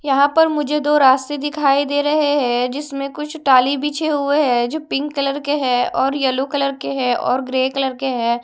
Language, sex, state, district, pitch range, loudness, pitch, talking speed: Hindi, female, Odisha, Malkangiri, 260-295 Hz, -18 LUFS, 275 Hz, 215 wpm